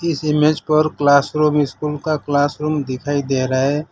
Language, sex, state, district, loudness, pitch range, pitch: Hindi, male, Gujarat, Valsad, -18 LUFS, 140-155 Hz, 150 Hz